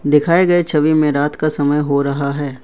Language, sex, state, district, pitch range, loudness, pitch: Hindi, male, Assam, Kamrup Metropolitan, 140-155 Hz, -15 LUFS, 150 Hz